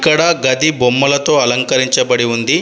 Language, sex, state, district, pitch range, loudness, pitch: Telugu, male, Telangana, Adilabad, 125-155 Hz, -13 LUFS, 140 Hz